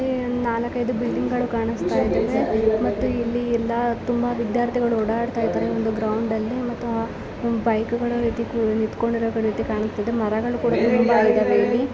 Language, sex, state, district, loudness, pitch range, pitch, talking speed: Kannada, female, Karnataka, Dharwad, -22 LUFS, 225-240 Hz, 235 Hz, 140 wpm